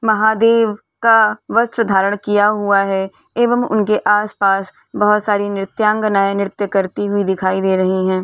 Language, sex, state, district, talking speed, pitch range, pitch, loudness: Hindi, female, Uttar Pradesh, Varanasi, 145 wpm, 195-215 Hz, 205 Hz, -16 LUFS